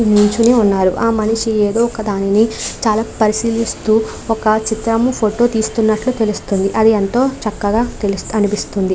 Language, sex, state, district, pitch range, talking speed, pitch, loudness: Telugu, female, Andhra Pradesh, Krishna, 210-230 Hz, 125 wpm, 220 Hz, -15 LUFS